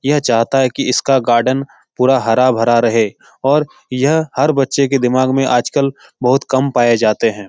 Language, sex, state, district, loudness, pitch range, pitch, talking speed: Hindi, male, Bihar, Jahanabad, -14 LUFS, 120-135 Hz, 130 Hz, 175 wpm